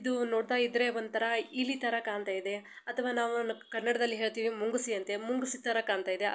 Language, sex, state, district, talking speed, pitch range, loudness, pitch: Kannada, female, Karnataka, Belgaum, 150 wpm, 220-240 Hz, -33 LUFS, 230 Hz